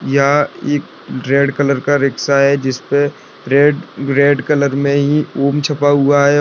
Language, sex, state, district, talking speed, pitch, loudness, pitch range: Hindi, male, Bihar, Darbhanga, 160 wpm, 140 Hz, -14 LUFS, 140-145 Hz